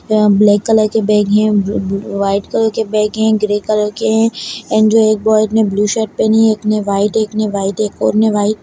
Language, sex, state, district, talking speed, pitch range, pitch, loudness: Hindi, female, Bihar, Begusarai, 250 wpm, 205-220 Hz, 215 Hz, -13 LUFS